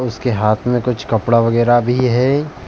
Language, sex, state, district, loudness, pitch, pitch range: Hindi, male, Uttar Pradesh, Jalaun, -15 LUFS, 120 Hz, 115-125 Hz